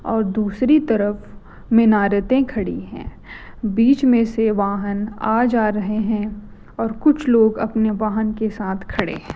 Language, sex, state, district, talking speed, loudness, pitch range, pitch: Hindi, female, Chhattisgarh, Raipur, 145 wpm, -19 LUFS, 210-230 Hz, 220 Hz